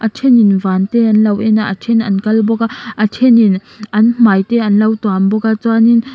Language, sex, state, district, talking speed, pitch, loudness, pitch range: Mizo, female, Mizoram, Aizawl, 245 wpm, 220 Hz, -12 LUFS, 210-230 Hz